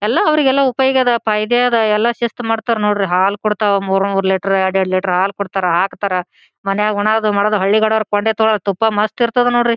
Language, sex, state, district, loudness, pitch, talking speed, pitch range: Kannada, female, Karnataka, Gulbarga, -15 LUFS, 210 Hz, 195 wpm, 195-230 Hz